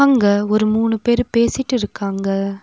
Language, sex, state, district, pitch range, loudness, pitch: Tamil, female, Tamil Nadu, Nilgiris, 200-240 Hz, -17 LUFS, 220 Hz